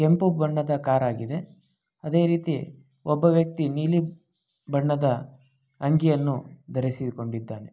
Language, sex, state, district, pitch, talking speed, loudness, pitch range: Kannada, male, Karnataka, Mysore, 150 Hz, 95 wpm, -25 LUFS, 135-165 Hz